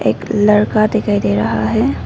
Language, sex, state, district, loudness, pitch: Hindi, female, Arunachal Pradesh, Lower Dibang Valley, -14 LUFS, 205 Hz